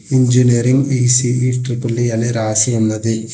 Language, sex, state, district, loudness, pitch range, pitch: Telugu, male, Telangana, Hyderabad, -15 LUFS, 115-125 Hz, 120 Hz